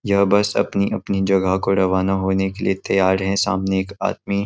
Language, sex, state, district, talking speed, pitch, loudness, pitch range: Hindi, male, Chhattisgarh, Raigarh, 190 wpm, 95 Hz, -19 LUFS, 95-100 Hz